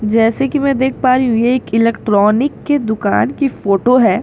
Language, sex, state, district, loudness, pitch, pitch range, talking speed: Hindi, female, Bihar, Katihar, -14 LUFS, 245 Hz, 220-265 Hz, 240 wpm